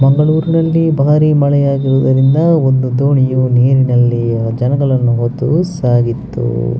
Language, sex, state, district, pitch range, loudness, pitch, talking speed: Kannada, male, Karnataka, Dakshina Kannada, 125-145 Hz, -12 LUFS, 135 Hz, 115 wpm